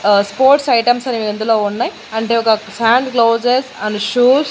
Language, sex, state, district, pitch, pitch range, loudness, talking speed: Telugu, female, Andhra Pradesh, Annamaya, 230 Hz, 215-250 Hz, -14 LUFS, 175 wpm